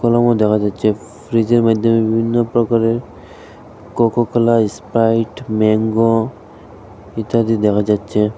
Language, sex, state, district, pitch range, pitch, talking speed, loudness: Bengali, male, Assam, Hailakandi, 105-115 Hz, 115 Hz, 100 wpm, -16 LUFS